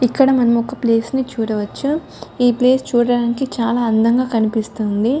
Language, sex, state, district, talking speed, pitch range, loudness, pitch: Telugu, female, Andhra Pradesh, Chittoor, 140 wpm, 225-260 Hz, -17 LUFS, 240 Hz